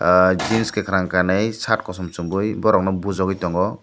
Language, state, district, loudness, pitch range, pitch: Kokborok, Tripura, Dhalai, -20 LUFS, 90-105 Hz, 95 Hz